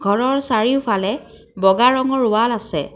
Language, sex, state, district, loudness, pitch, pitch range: Assamese, female, Assam, Kamrup Metropolitan, -17 LUFS, 225 Hz, 200-255 Hz